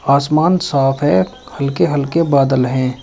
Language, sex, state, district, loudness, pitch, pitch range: Hindi, male, Uttar Pradesh, Shamli, -15 LUFS, 140 Hz, 135-155 Hz